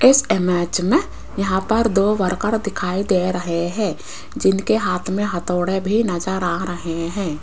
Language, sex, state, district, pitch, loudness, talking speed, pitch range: Hindi, female, Rajasthan, Jaipur, 190 Hz, -20 LUFS, 160 wpm, 180-205 Hz